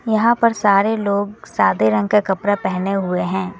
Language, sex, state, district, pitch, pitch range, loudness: Hindi, female, West Bengal, Alipurduar, 200 Hz, 185-215 Hz, -18 LUFS